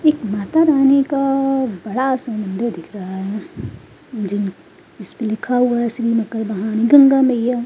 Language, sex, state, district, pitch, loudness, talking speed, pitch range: Hindi, female, Uttarakhand, Tehri Garhwal, 230 Hz, -17 LUFS, 155 wpm, 205-265 Hz